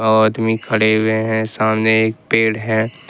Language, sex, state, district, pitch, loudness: Hindi, male, Jharkhand, Ranchi, 110 Hz, -16 LUFS